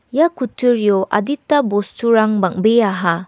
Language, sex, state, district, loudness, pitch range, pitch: Garo, female, Meghalaya, West Garo Hills, -16 LUFS, 200-250 Hz, 220 Hz